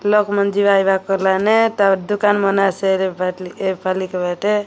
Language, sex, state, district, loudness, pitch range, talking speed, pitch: Odia, female, Odisha, Malkangiri, -17 LUFS, 190-205 Hz, 165 wpm, 195 Hz